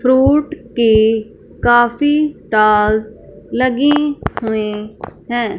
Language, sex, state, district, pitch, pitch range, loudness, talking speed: Hindi, female, Punjab, Fazilka, 240 Hz, 215-280 Hz, -15 LUFS, 75 wpm